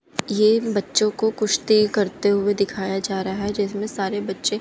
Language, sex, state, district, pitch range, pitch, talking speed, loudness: Hindi, female, Haryana, Jhajjar, 195-215 Hz, 205 Hz, 170 wpm, -21 LUFS